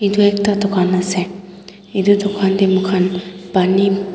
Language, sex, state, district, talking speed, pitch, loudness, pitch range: Nagamese, female, Nagaland, Dimapur, 130 wpm, 195 Hz, -16 LUFS, 185-200 Hz